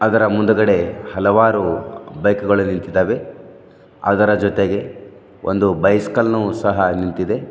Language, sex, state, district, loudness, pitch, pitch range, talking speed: Kannada, male, Karnataka, Bidar, -17 LUFS, 100 Hz, 100-110 Hz, 105 wpm